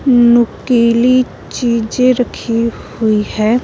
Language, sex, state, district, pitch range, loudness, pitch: Hindi, female, Himachal Pradesh, Shimla, 230-250 Hz, -13 LUFS, 235 Hz